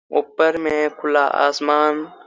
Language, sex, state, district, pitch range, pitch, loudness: Hindi, male, Chhattisgarh, Korba, 150-155 Hz, 150 Hz, -18 LUFS